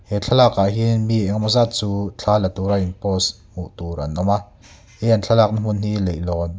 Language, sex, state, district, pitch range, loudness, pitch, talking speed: Mizo, male, Mizoram, Aizawl, 95-110 Hz, -19 LUFS, 100 Hz, 230 wpm